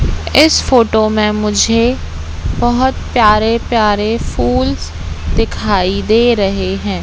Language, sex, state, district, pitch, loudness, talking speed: Hindi, female, Madhya Pradesh, Katni, 210 Hz, -13 LUFS, 100 wpm